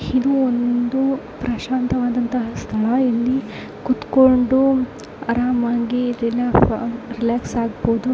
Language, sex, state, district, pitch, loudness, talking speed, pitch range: Kannada, female, Karnataka, Raichur, 245 Hz, -19 LUFS, 80 wpm, 235-255 Hz